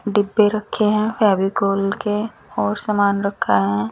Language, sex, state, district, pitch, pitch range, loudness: Hindi, female, Bihar, West Champaran, 205 Hz, 195-210 Hz, -19 LUFS